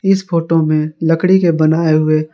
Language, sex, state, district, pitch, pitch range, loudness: Hindi, male, Jharkhand, Garhwa, 165 Hz, 155-170 Hz, -13 LUFS